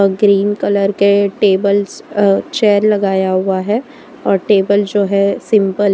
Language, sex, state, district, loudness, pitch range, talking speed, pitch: Hindi, female, Gujarat, Valsad, -14 LUFS, 195-205 Hz, 150 wpm, 200 Hz